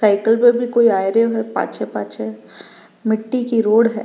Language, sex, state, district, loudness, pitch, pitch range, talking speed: Rajasthani, female, Rajasthan, Nagaur, -17 LUFS, 225 Hz, 210-235 Hz, 180 wpm